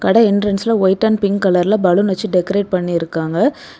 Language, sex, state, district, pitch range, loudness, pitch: Tamil, female, Tamil Nadu, Kanyakumari, 180-215 Hz, -15 LUFS, 200 Hz